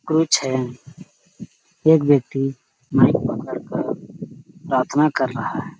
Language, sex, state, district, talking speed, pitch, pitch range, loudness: Hindi, male, Chhattisgarh, Sarguja, 115 wpm, 145 Hz, 130-160 Hz, -20 LUFS